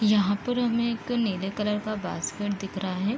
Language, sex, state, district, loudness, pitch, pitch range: Hindi, female, Uttar Pradesh, Deoria, -27 LUFS, 210 Hz, 195-230 Hz